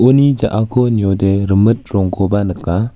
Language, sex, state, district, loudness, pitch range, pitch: Garo, male, Meghalaya, West Garo Hills, -14 LUFS, 95-120 Hz, 105 Hz